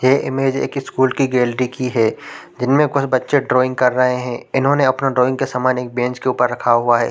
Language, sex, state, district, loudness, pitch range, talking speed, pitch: Hindi, male, Chhattisgarh, Raigarh, -17 LUFS, 125-135 Hz, 230 wpm, 130 Hz